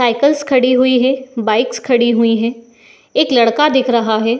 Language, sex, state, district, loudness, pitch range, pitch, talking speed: Hindi, female, Uttar Pradesh, Etah, -14 LUFS, 230-265 Hz, 240 Hz, 220 wpm